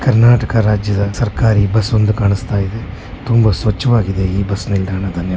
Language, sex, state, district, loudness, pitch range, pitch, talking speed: Kannada, male, Karnataka, Bellary, -15 LUFS, 100-115 Hz, 105 Hz, 135 wpm